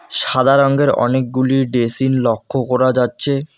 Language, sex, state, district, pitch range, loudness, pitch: Bengali, male, West Bengal, Alipurduar, 125-135 Hz, -15 LUFS, 130 Hz